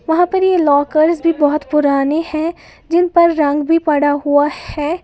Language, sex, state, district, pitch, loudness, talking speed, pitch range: Hindi, female, Uttar Pradesh, Lalitpur, 310 Hz, -14 LUFS, 180 wpm, 290-335 Hz